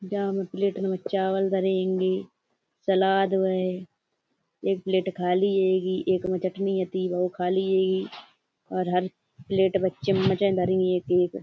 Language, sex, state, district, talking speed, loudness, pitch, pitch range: Hindi, female, Uttar Pradesh, Budaun, 145 wpm, -25 LUFS, 185 Hz, 185-195 Hz